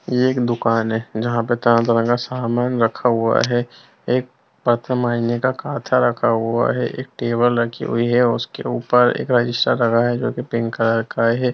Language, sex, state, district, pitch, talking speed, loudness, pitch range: Hindi, male, Bihar, Jamui, 120 Hz, 180 wpm, -19 LUFS, 115-125 Hz